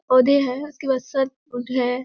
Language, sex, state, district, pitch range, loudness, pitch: Hindi, female, Bihar, Kishanganj, 255-280 Hz, -21 LUFS, 265 Hz